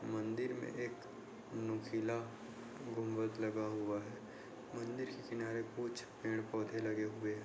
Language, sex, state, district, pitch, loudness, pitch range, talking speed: Hindi, male, Bihar, Begusarai, 110 Hz, -42 LUFS, 110-115 Hz, 130 wpm